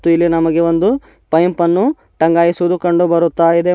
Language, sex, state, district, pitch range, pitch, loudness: Kannada, male, Karnataka, Bidar, 165-175 Hz, 170 Hz, -14 LUFS